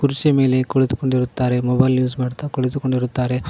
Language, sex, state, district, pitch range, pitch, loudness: Kannada, male, Karnataka, Koppal, 125-135 Hz, 130 Hz, -19 LUFS